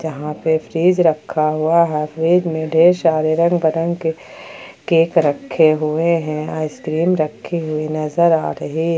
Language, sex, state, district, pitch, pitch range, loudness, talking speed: Hindi, female, Jharkhand, Ranchi, 160 Hz, 155-170 Hz, -17 LUFS, 155 wpm